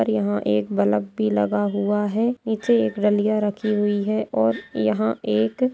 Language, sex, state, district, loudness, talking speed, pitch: Hindi, female, Bihar, Darbhanga, -22 LUFS, 190 wpm, 195 Hz